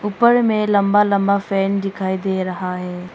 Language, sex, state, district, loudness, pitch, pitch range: Hindi, female, Arunachal Pradesh, Longding, -18 LUFS, 195 Hz, 190-205 Hz